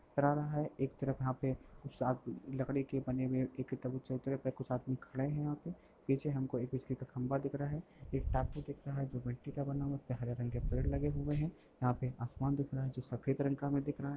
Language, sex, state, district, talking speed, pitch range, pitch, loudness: Bhojpuri, male, Uttar Pradesh, Gorakhpur, 265 wpm, 130-140 Hz, 135 Hz, -39 LUFS